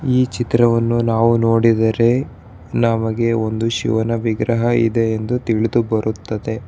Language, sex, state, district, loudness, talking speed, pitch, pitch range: Kannada, male, Karnataka, Bangalore, -17 LUFS, 110 wpm, 115 Hz, 110-115 Hz